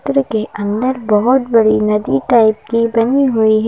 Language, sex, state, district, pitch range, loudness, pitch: Hindi, female, Madhya Pradesh, Bhopal, 215-245 Hz, -14 LUFS, 225 Hz